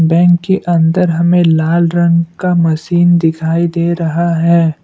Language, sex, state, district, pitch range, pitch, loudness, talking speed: Hindi, male, Assam, Kamrup Metropolitan, 165-175 Hz, 170 Hz, -12 LUFS, 150 wpm